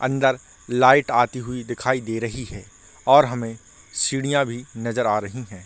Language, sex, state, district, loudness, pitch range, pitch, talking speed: Hindi, male, Chhattisgarh, Korba, -21 LUFS, 110-130 Hz, 120 Hz, 170 wpm